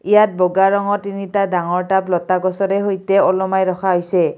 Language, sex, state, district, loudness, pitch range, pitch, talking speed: Assamese, female, Assam, Kamrup Metropolitan, -17 LUFS, 185-195 Hz, 190 Hz, 165 wpm